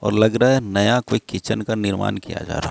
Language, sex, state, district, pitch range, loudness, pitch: Hindi, male, Bihar, Katihar, 100-115 Hz, -20 LUFS, 110 Hz